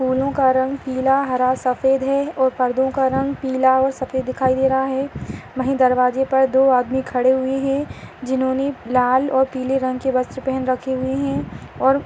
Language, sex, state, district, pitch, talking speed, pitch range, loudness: Hindi, female, Uttar Pradesh, Ghazipur, 265 Hz, 190 wpm, 260-265 Hz, -19 LUFS